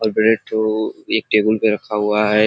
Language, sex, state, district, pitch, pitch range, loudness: Hindi, male, Bihar, Kishanganj, 110 Hz, 105-110 Hz, -18 LUFS